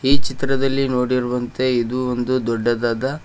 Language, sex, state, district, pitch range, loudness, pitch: Kannada, male, Karnataka, Koppal, 120-135 Hz, -20 LUFS, 130 Hz